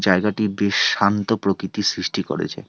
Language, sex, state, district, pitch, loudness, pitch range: Bengali, male, West Bengal, Alipurduar, 100 Hz, -21 LUFS, 100-105 Hz